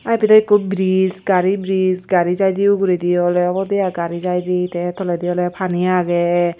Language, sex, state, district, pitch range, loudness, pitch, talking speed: Chakma, female, Tripura, Unakoti, 175-190 Hz, -17 LUFS, 180 Hz, 175 wpm